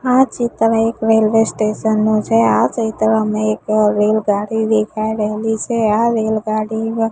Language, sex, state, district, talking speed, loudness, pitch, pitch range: Gujarati, female, Gujarat, Gandhinagar, 135 wpm, -16 LUFS, 220 Hz, 215-225 Hz